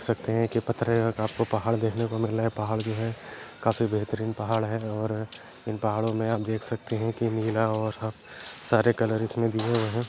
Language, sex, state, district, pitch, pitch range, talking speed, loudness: Kumaoni, male, Uttarakhand, Uttarkashi, 110 Hz, 110-115 Hz, 210 wpm, -27 LUFS